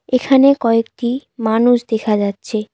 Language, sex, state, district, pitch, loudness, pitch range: Bengali, female, West Bengal, Cooch Behar, 230 Hz, -15 LUFS, 220-250 Hz